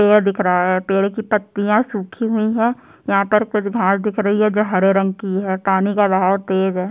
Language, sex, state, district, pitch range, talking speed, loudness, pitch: Hindi, male, Chhattisgarh, Sukma, 190-215 Hz, 235 wpm, -17 LUFS, 200 Hz